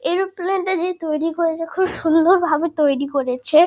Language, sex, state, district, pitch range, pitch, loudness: Bengali, female, West Bengal, Kolkata, 305-365 Hz, 330 Hz, -19 LUFS